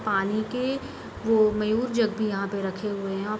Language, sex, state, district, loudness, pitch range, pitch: Hindi, female, Bihar, Gopalganj, -26 LUFS, 200-225 Hz, 215 Hz